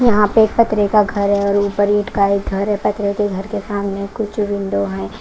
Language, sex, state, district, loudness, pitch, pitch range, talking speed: Hindi, female, Haryana, Rohtak, -17 LUFS, 205 Hz, 200-210 Hz, 255 wpm